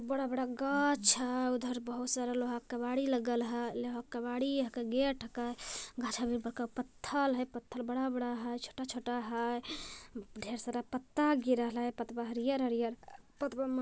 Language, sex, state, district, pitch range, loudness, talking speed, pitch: Magahi, female, Bihar, Jamui, 240-260 Hz, -35 LUFS, 175 wpm, 245 Hz